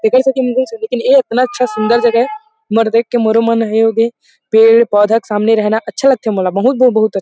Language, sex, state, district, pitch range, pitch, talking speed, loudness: Chhattisgarhi, male, Chhattisgarh, Rajnandgaon, 220-255 Hz, 230 Hz, 190 wpm, -12 LUFS